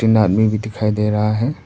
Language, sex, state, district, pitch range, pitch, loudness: Hindi, male, Arunachal Pradesh, Papum Pare, 105-110 Hz, 110 Hz, -17 LUFS